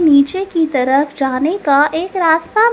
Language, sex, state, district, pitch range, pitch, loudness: Hindi, male, Madhya Pradesh, Dhar, 280-345 Hz, 315 Hz, -14 LUFS